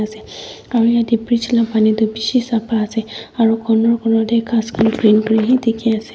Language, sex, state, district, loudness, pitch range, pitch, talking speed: Nagamese, female, Nagaland, Dimapur, -16 LUFS, 220-230 Hz, 225 Hz, 195 wpm